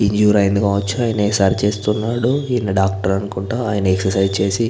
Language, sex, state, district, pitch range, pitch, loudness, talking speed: Telugu, male, Andhra Pradesh, Visakhapatnam, 95-110 Hz, 100 Hz, -17 LUFS, 165 wpm